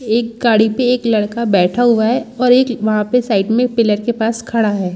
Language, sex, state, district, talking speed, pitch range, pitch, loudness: Hindi, female, Chhattisgarh, Balrampur, 240 wpm, 215-245 Hz, 230 Hz, -15 LUFS